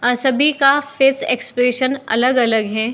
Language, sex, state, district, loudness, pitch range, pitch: Hindi, female, Uttar Pradesh, Muzaffarnagar, -16 LUFS, 245-275 Hz, 255 Hz